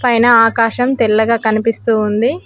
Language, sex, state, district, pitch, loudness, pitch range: Telugu, female, Telangana, Mahabubabad, 230 Hz, -13 LUFS, 220-240 Hz